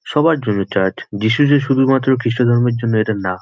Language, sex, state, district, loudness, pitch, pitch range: Bengali, male, West Bengal, North 24 Parganas, -16 LUFS, 120 Hz, 105-135 Hz